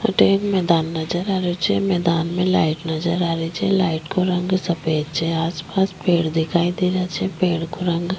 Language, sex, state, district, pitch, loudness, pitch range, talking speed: Rajasthani, female, Rajasthan, Nagaur, 175 Hz, -20 LUFS, 165-185 Hz, 205 wpm